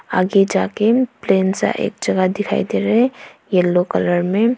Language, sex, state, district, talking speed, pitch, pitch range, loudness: Hindi, female, Arunachal Pradesh, Papum Pare, 170 wpm, 195 Hz, 185-225 Hz, -17 LUFS